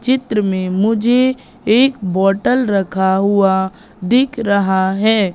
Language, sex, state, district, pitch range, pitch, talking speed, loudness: Hindi, female, Madhya Pradesh, Katni, 190-240 Hz, 205 Hz, 110 wpm, -15 LUFS